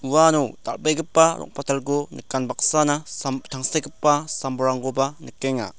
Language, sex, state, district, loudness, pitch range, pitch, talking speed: Garo, male, Meghalaya, South Garo Hills, -22 LUFS, 130-155 Hz, 140 Hz, 85 wpm